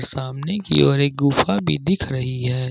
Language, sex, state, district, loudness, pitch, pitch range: Hindi, male, Jharkhand, Ranchi, -20 LUFS, 130 Hz, 130-140 Hz